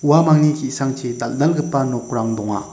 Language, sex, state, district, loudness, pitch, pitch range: Garo, male, Meghalaya, West Garo Hills, -18 LUFS, 135 Hz, 120-150 Hz